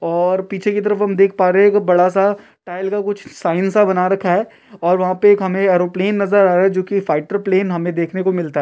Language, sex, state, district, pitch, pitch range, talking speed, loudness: Hindi, male, Uttar Pradesh, Ghazipur, 190 Hz, 180-200 Hz, 270 wpm, -16 LUFS